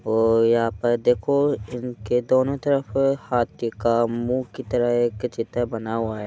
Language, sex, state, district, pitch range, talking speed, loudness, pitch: Hindi, male, Uttar Pradesh, Muzaffarnagar, 115-130 Hz, 170 wpm, -22 LUFS, 120 Hz